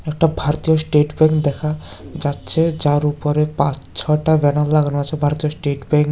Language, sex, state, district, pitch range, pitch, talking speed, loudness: Bengali, male, Tripura, West Tripura, 145-155 Hz, 150 Hz, 165 wpm, -17 LUFS